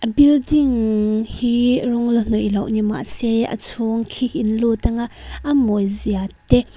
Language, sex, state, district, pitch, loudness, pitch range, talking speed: Mizo, female, Mizoram, Aizawl, 230 Hz, -18 LUFS, 215-245 Hz, 170 wpm